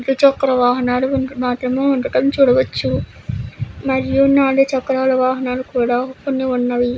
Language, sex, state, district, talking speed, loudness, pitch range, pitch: Telugu, female, Andhra Pradesh, Guntur, 105 wpm, -17 LUFS, 250-270 Hz, 260 Hz